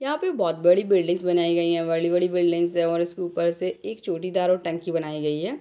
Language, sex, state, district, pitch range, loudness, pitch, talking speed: Hindi, female, Bihar, Sitamarhi, 170-180 Hz, -23 LUFS, 175 Hz, 215 wpm